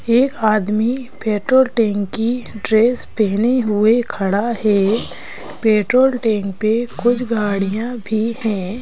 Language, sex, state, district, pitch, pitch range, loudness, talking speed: Hindi, female, Madhya Pradesh, Bhopal, 225 Hz, 210-240 Hz, -17 LUFS, 115 wpm